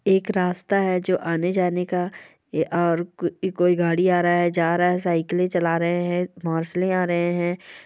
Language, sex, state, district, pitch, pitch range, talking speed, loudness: Hindi, female, Bihar, Saran, 175 Hz, 170-180 Hz, 175 wpm, -22 LUFS